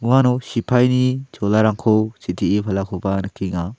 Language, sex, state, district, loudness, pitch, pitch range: Garo, male, Meghalaya, South Garo Hills, -19 LUFS, 110 Hz, 95-125 Hz